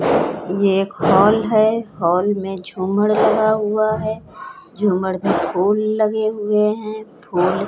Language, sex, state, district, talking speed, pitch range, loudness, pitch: Hindi, female, Uttar Pradesh, Hamirpur, 140 wpm, 190-215 Hz, -18 LUFS, 210 Hz